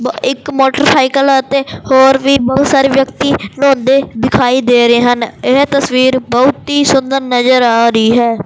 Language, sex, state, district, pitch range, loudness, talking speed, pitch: Punjabi, male, Punjab, Fazilka, 245-275 Hz, -11 LUFS, 155 wpm, 265 Hz